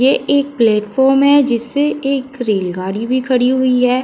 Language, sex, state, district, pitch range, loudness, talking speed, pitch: Hindi, female, Uttar Pradesh, Jyotiba Phule Nagar, 230-275 Hz, -15 LUFS, 180 wpm, 255 Hz